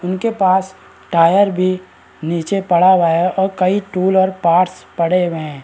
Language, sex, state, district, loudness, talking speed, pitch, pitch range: Hindi, male, Chhattisgarh, Rajnandgaon, -15 LUFS, 170 wpm, 185 Hz, 170-190 Hz